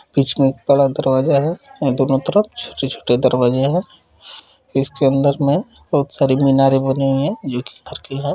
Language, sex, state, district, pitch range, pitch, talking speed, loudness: Kumaoni, male, Uttarakhand, Uttarkashi, 135-145 Hz, 135 Hz, 165 wpm, -17 LUFS